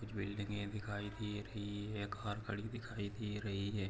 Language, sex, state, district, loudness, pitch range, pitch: Hindi, male, Jharkhand, Sahebganj, -43 LUFS, 100-105 Hz, 105 Hz